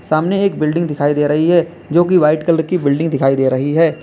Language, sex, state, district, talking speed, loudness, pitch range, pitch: Hindi, male, Uttar Pradesh, Lalitpur, 255 wpm, -15 LUFS, 145-170 Hz, 160 Hz